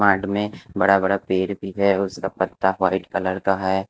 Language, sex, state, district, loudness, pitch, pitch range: Hindi, male, Himachal Pradesh, Shimla, -22 LUFS, 95 Hz, 95-100 Hz